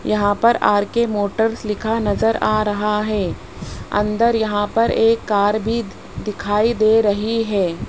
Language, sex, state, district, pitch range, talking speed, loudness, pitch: Hindi, female, Rajasthan, Jaipur, 205-225 Hz, 145 wpm, -18 LUFS, 215 Hz